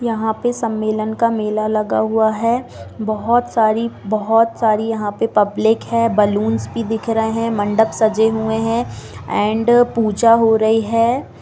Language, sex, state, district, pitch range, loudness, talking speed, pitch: Hindi, female, Bihar, Gopalganj, 215-230 Hz, -17 LUFS, 160 wpm, 220 Hz